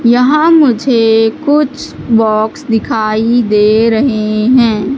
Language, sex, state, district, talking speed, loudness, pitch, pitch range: Hindi, female, Madhya Pradesh, Katni, 95 wpm, -10 LUFS, 230 Hz, 220-270 Hz